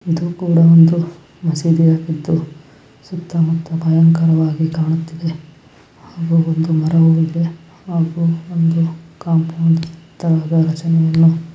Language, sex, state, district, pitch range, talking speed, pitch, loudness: Kannada, male, Karnataka, Chamarajanagar, 160-165 Hz, 65 wpm, 165 Hz, -15 LUFS